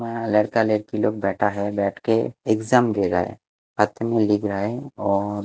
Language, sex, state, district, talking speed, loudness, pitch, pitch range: Hindi, male, Bihar, West Champaran, 165 wpm, -22 LUFS, 105 Hz, 100-115 Hz